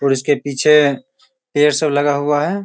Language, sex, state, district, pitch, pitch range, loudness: Hindi, male, Bihar, Sitamarhi, 145 Hz, 140-190 Hz, -15 LUFS